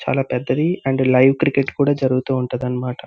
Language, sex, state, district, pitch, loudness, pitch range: Telugu, male, Andhra Pradesh, Visakhapatnam, 130 Hz, -18 LUFS, 125-140 Hz